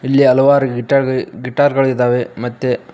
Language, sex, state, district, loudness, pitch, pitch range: Kannada, male, Karnataka, Koppal, -15 LUFS, 130 Hz, 125-135 Hz